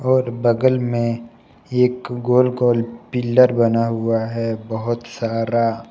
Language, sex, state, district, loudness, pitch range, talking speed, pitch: Hindi, male, Jharkhand, Palamu, -19 LUFS, 115-125 Hz, 120 wpm, 120 Hz